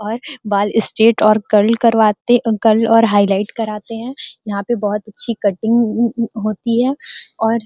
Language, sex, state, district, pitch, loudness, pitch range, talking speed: Hindi, female, Uttar Pradesh, Gorakhpur, 225 Hz, -15 LUFS, 210-235 Hz, 155 wpm